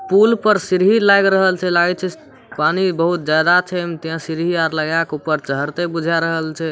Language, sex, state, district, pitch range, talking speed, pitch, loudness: Maithili, male, Bihar, Samastipur, 160-185 Hz, 205 wpm, 175 Hz, -17 LUFS